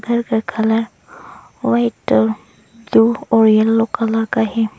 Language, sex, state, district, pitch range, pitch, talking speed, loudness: Hindi, female, Arunachal Pradesh, Longding, 215-230 Hz, 225 Hz, 125 wpm, -16 LUFS